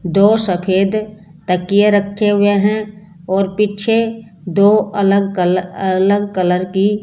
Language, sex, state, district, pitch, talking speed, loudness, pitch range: Hindi, female, Rajasthan, Jaipur, 200 Hz, 120 wpm, -15 LUFS, 185-210 Hz